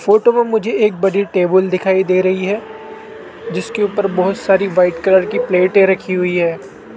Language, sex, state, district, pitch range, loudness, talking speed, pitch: Hindi, male, Rajasthan, Jaipur, 185-205 Hz, -15 LUFS, 180 wpm, 190 Hz